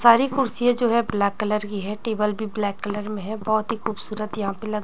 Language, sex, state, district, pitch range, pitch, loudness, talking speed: Hindi, female, Chhattisgarh, Raipur, 210-225 Hz, 215 Hz, -24 LUFS, 260 wpm